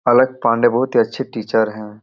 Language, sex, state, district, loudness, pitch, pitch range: Hindi, male, Bihar, Araria, -17 LUFS, 120 Hz, 110-125 Hz